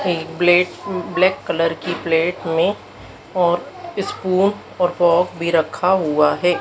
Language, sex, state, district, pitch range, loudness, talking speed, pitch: Hindi, female, Madhya Pradesh, Dhar, 165-180 Hz, -19 LUFS, 125 wpm, 175 Hz